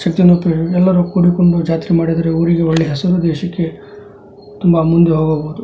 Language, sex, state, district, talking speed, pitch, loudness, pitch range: Kannada, male, Karnataka, Dharwad, 140 wpm, 170 Hz, -14 LUFS, 165-180 Hz